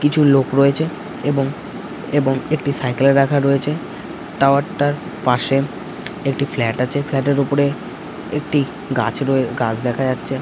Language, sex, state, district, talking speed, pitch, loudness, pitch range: Bengali, male, West Bengal, Kolkata, 125 wpm, 140 Hz, -18 LUFS, 130-145 Hz